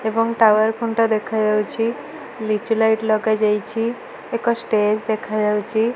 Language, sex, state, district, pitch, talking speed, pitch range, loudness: Odia, female, Odisha, Malkangiri, 220 Hz, 100 wpm, 215-230 Hz, -19 LUFS